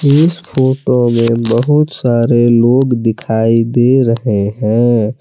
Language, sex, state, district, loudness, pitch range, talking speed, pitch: Hindi, male, Jharkhand, Palamu, -12 LUFS, 115-130 Hz, 115 wpm, 120 Hz